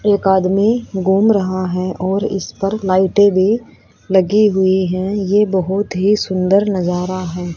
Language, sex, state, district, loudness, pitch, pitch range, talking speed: Hindi, female, Haryana, Rohtak, -15 LUFS, 190 Hz, 185-205 Hz, 150 wpm